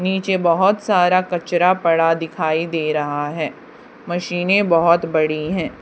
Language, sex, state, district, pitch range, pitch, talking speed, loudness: Hindi, female, Haryana, Charkhi Dadri, 160-180 Hz, 170 Hz, 135 wpm, -18 LUFS